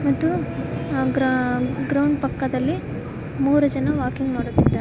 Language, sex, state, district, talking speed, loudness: Kannada, female, Karnataka, Koppal, 100 wpm, -22 LUFS